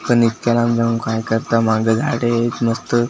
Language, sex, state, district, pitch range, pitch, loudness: Marathi, male, Maharashtra, Washim, 115-120 Hz, 115 Hz, -18 LUFS